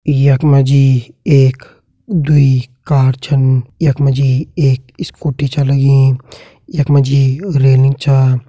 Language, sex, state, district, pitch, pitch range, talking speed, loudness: Hindi, male, Uttarakhand, Tehri Garhwal, 135 Hz, 130-140 Hz, 135 wpm, -12 LUFS